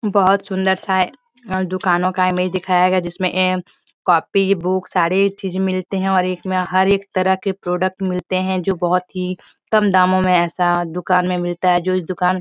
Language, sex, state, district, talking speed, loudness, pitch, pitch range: Hindi, female, Bihar, Jahanabad, 200 wpm, -18 LUFS, 185 Hz, 180-190 Hz